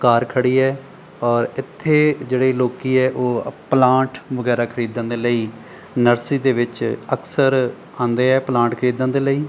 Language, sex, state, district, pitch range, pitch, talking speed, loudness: Punjabi, male, Punjab, Pathankot, 120-135 Hz, 130 Hz, 150 wpm, -19 LUFS